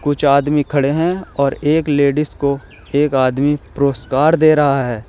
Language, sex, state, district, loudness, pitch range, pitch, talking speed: Hindi, male, Uttar Pradesh, Shamli, -16 LUFS, 140-150 Hz, 140 Hz, 165 wpm